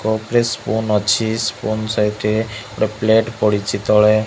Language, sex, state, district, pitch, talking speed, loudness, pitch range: Odia, male, Odisha, Malkangiri, 110 Hz, 155 wpm, -18 LUFS, 105-110 Hz